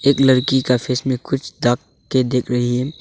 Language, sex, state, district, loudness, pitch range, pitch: Hindi, male, Arunachal Pradesh, Longding, -18 LUFS, 125-135 Hz, 130 Hz